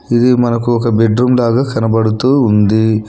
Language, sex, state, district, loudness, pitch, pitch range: Telugu, male, Telangana, Hyderabad, -12 LUFS, 115 Hz, 110-125 Hz